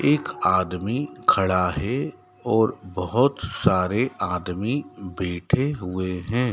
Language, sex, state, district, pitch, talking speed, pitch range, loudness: Hindi, male, Madhya Pradesh, Dhar, 100 Hz, 100 wpm, 90-125 Hz, -24 LUFS